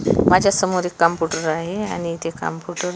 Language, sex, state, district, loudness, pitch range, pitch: Marathi, female, Maharashtra, Washim, -20 LUFS, 165-185 Hz, 175 Hz